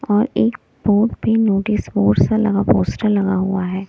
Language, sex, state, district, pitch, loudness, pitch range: Hindi, female, Delhi, New Delhi, 205 Hz, -17 LUFS, 190-220 Hz